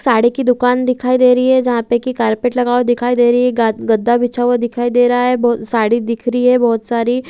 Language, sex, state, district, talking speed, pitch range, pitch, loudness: Hindi, female, Bihar, Araria, 265 wpm, 235-250 Hz, 245 Hz, -14 LUFS